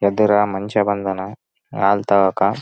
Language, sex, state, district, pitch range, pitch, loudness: Kannada, male, Karnataka, Raichur, 95-105 Hz, 100 Hz, -18 LUFS